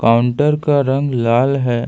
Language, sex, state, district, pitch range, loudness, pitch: Hindi, male, Jharkhand, Ranchi, 120-140 Hz, -15 LUFS, 130 Hz